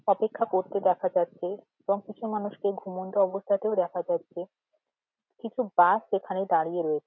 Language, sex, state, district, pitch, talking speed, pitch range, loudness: Bengali, female, West Bengal, Jhargram, 195 Hz, 135 wpm, 180-210 Hz, -28 LUFS